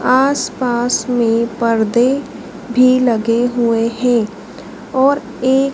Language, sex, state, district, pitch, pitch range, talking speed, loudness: Hindi, female, Madhya Pradesh, Dhar, 245 Hz, 230-255 Hz, 95 wpm, -15 LUFS